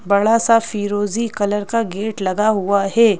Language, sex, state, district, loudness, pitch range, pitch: Hindi, female, Madhya Pradesh, Bhopal, -18 LUFS, 200-225 Hz, 205 Hz